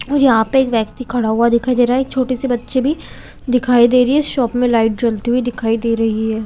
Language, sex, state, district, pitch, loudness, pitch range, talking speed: Hindi, female, Chhattisgarh, Korba, 245 Hz, -15 LUFS, 230-255 Hz, 260 wpm